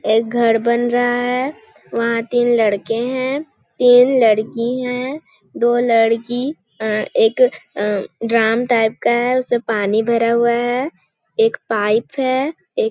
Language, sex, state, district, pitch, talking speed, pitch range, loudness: Hindi, female, Chhattisgarh, Balrampur, 240 Hz, 145 wpm, 230-260 Hz, -17 LUFS